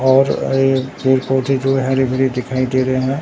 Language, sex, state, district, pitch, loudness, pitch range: Hindi, male, Bihar, Katihar, 130 Hz, -16 LUFS, 130-135 Hz